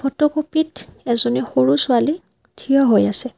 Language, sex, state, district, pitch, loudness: Assamese, female, Assam, Kamrup Metropolitan, 260 Hz, -17 LUFS